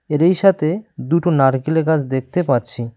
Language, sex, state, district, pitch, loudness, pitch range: Bengali, male, West Bengal, Cooch Behar, 155 Hz, -17 LUFS, 130-175 Hz